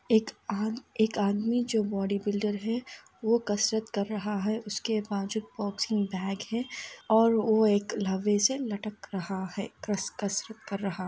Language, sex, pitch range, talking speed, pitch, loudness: Hindi, female, 200-220 Hz, 140 wpm, 210 Hz, -29 LUFS